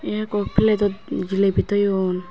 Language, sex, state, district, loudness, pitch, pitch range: Chakma, female, Tripura, West Tripura, -21 LUFS, 200 Hz, 190-205 Hz